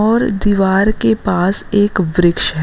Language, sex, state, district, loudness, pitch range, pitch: Hindi, female, Uttarakhand, Uttarkashi, -14 LUFS, 185-215 Hz, 200 Hz